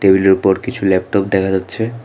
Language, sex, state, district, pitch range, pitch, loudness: Bengali, male, Tripura, West Tripura, 95-100 Hz, 95 Hz, -15 LUFS